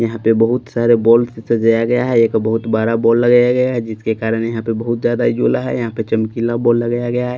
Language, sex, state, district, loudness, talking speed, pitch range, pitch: Hindi, male, Maharashtra, Washim, -15 LUFS, 245 wpm, 115-120 Hz, 115 Hz